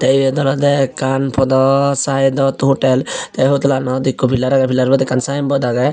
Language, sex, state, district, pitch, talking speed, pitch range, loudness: Chakma, male, Tripura, Unakoti, 135 Hz, 140 wpm, 130-135 Hz, -15 LUFS